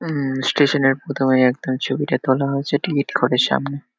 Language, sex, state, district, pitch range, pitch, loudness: Bengali, male, West Bengal, Kolkata, 130-140 Hz, 135 Hz, -19 LUFS